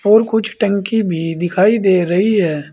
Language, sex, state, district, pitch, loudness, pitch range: Hindi, male, Uttar Pradesh, Saharanpur, 200 Hz, -15 LUFS, 175-220 Hz